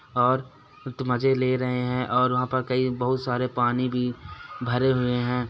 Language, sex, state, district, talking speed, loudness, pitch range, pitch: Hindi, male, Chhattisgarh, Raigarh, 195 wpm, -25 LUFS, 125-130 Hz, 125 Hz